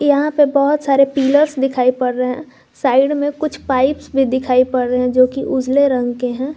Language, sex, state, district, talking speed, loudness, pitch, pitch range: Hindi, female, Jharkhand, Garhwa, 220 wpm, -16 LUFS, 270 Hz, 255-285 Hz